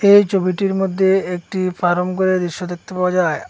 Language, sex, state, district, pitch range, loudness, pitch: Bengali, male, Assam, Hailakandi, 180-190 Hz, -18 LUFS, 185 Hz